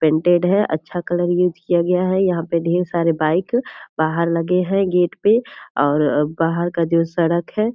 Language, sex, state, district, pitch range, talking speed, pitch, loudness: Hindi, female, Bihar, Purnia, 165-180 Hz, 195 wpm, 175 Hz, -18 LUFS